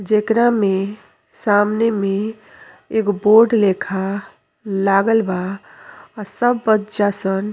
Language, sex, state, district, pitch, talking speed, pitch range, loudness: Bhojpuri, female, Uttar Pradesh, Deoria, 210 Hz, 110 wpm, 195-225 Hz, -18 LUFS